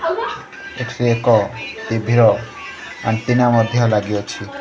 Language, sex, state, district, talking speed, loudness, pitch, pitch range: Odia, male, Odisha, Khordha, 105 wpm, -18 LUFS, 120 Hz, 110-125 Hz